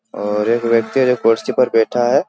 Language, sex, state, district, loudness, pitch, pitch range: Hindi, male, Bihar, Araria, -16 LUFS, 115 Hz, 115-125 Hz